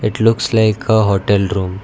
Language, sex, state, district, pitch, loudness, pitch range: English, male, Karnataka, Bangalore, 110 Hz, -15 LUFS, 100-110 Hz